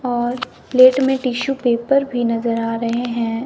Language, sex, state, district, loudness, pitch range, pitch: Hindi, male, Himachal Pradesh, Shimla, -18 LUFS, 235-260 Hz, 245 Hz